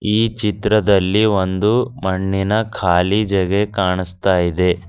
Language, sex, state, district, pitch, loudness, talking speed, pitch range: Kannada, female, Karnataka, Bidar, 100 Hz, -17 LUFS, 100 wpm, 95-105 Hz